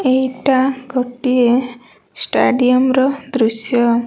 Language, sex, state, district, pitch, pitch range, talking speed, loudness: Odia, female, Odisha, Malkangiri, 255 Hz, 245-260 Hz, 75 wpm, -16 LUFS